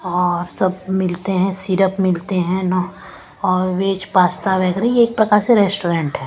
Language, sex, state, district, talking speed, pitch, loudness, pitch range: Hindi, female, Punjab, Pathankot, 170 wpm, 185 Hz, -17 LUFS, 180-195 Hz